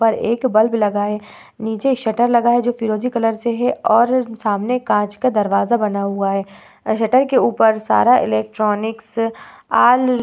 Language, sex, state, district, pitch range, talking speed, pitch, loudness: Hindi, female, Uttar Pradesh, Budaun, 210-240 Hz, 175 wpm, 225 Hz, -17 LUFS